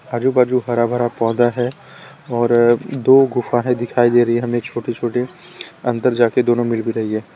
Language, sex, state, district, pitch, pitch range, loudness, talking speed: Hindi, male, Gujarat, Valsad, 120 Hz, 120-125 Hz, -17 LUFS, 185 wpm